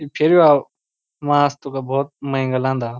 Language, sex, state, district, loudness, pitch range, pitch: Garhwali, male, Uttarakhand, Uttarkashi, -18 LUFS, 130-145 Hz, 140 Hz